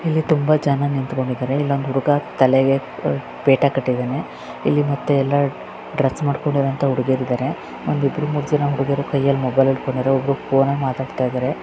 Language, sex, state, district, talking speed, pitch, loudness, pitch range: Kannada, female, Karnataka, Raichur, 145 wpm, 135 Hz, -20 LUFS, 130-140 Hz